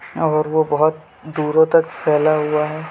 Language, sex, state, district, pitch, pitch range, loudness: Hindi, male, Jharkhand, Sahebganj, 155 Hz, 150-155 Hz, -17 LUFS